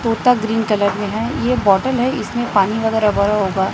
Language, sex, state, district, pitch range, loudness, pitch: Hindi, female, Chhattisgarh, Raipur, 205-240 Hz, -17 LUFS, 220 Hz